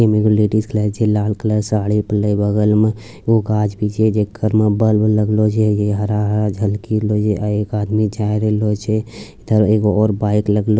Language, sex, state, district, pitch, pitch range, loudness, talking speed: Angika, male, Bihar, Bhagalpur, 105 Hz, 105-110 Hz, -17 LUFS, 185 wpm